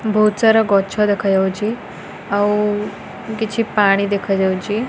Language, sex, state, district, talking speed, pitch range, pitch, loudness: Odia, female, Odisha, Khordha, 100 wpm, 200-215 Hz, 210 Hz, -17 LUFS